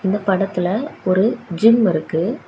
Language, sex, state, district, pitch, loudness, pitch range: Tamil, female, Tamil Nadu, Kanyakumari, 200 Hz, -18 LUFS, 180-225 Hz